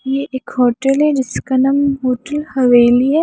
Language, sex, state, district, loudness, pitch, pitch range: Hindi, female, Himachal Pradesh, Shimla, -15 LUFS, 270 Hz, 255-280 Hz